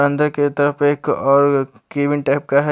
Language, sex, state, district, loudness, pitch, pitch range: Hindi, male, Haryana, Charkhi Dadri, -17 LUFS, 145 Hz, 140-145 Hz